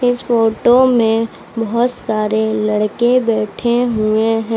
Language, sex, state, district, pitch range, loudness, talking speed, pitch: Hindi, female, Uttar Pradesh, Lucknow, 220-240 Hz, -15 LUFS, 120 wpm, 225 Hz